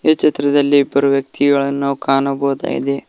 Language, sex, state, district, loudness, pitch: Kannada, male, Karnataka, Koppal, -16 LUFS, 140 Hz